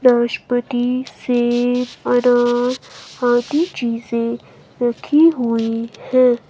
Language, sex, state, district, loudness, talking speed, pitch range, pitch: Hindi, female, Himachal Pradesh, Shimla, -18 LUFS, 75 wpm, 240-250 Hz, 245 Hz